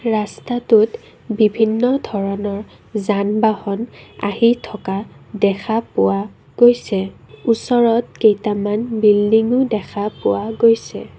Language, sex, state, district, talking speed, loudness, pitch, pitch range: Assamese, female, Assam, Kamrup Metropolitan, 90 wpm, -17 LUFS, 215 Hz, 205-230 Hz